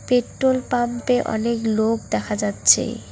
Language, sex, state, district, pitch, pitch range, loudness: Bengali, female, West Bengal, Cooch Behar, 235 Hz, 220-250 Hz, -20 LUFS